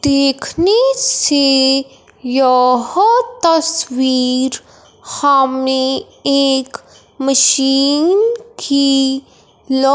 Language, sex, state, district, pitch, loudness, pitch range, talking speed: Hindi, male, Punjab, Fazilka, 275 Hz, -13 LUFS, 265-330 Hz, 55 wpm